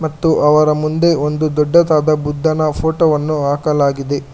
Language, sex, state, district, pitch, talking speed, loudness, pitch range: Kannada, male, Karnataka, Bangalore, 155 Hz, 125 wpm, -14 LUFS, 150-160 Hz